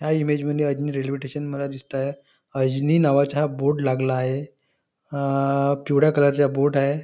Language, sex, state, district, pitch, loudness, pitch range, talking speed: Marathi, male, Maharashtra, Nagpur, 140 Hz, -22 LUFS, 135-145 Hz, 170 wpm